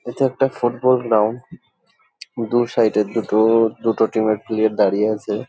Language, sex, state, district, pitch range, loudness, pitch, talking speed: Bengali, male, West Bengal, Dakshin Dinajpur, 110-120 Hz, -18 LUFS, 115 Hz, 175 wpm